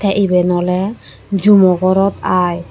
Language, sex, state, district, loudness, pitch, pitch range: Chakma, female, Tripura, Dhalai, -14 LUFS, 185 Hz, 180-195 Hz